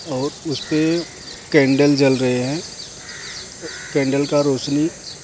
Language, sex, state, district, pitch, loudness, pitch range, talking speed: Hindi, male, Maharashtra, Mumbai Suburban, 145 Hz, -19 LUFS, 135-155 Hz, 115 wpm